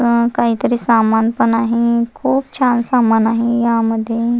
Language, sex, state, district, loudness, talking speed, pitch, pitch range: Marathi, female, Maharashtra, Nagpur, -15 LUFS, 150 wpm, 235 Hz, 225-240 Hz